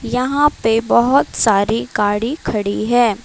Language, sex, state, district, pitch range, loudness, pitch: Hindi, female, Karnataka, Bangalore, 210-250 Hz, -16 LUFS, 230 Hz